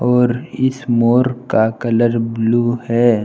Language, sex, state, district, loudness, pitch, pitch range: Hindi, male, Jharkhand, Palamu, -16 LUFS, 120 Hz, 115-125 Hz